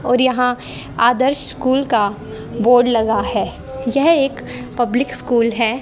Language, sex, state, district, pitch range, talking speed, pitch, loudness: Hindi, female, Haryana, Jhajjar, 235-260 Hz, 135 wpm, 250 Hz, -17 LUFS